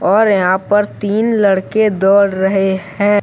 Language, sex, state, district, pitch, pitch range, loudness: Hindi, male, Jharkhand, Deoghar, 200 Hz, 190-210 Hz, -14 LUFS